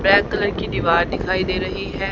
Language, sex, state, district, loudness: Hindi, female, Haryana, Charkhi Dadri, -20 LUFS